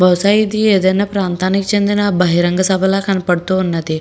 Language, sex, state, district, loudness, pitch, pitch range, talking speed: Telugu, female, Andhra Pradesh, Srikakulam, -14 LUFS, 190 Hz, 180-200 Hz, 135 wpm